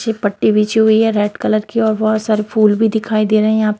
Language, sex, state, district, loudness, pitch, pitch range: Hindi, female, Bihar, Darbhanga, -14 LUFS, 215 Hz, 210-220 Hz